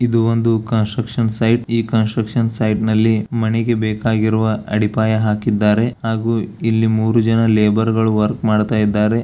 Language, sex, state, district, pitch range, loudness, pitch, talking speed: Kannada, male, Karnataka, Bellary, 110-115 Hz, -17 LUFS, 110 Hz, 135 wpm